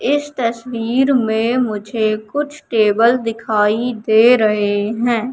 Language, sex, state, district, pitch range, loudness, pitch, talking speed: Hindi, female, Madhya Pradesh, Katni, 220-250 Hz, -16 LUFS, 230 Hz, 110 wpm